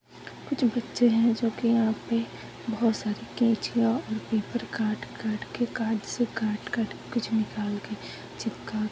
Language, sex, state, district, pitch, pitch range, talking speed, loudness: Hindi, female, Chhattisgarh, Balrampur, 225 Hz, 215-235 Hz, 140 wpm, -28 LUFS